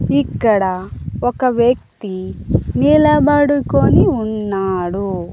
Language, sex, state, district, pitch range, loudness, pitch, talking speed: Telugu, female, Andhra Pradesh, Annamaya, 185-255 Hz, -15 LUFS, 210 Hz, 55 wpm